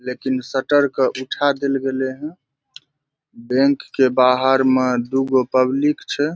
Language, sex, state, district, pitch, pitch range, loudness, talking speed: Maithili, male, Bihar, Saharsa, 135 Hz, 130-140 Hz, -18 LUFS, 150 wpm